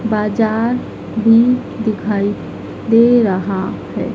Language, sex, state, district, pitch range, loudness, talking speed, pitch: Hindi, female, Madhya Pradesh, Dhar, 205-230 Hz, -15 LUFS, 85 wpm, 220 Hz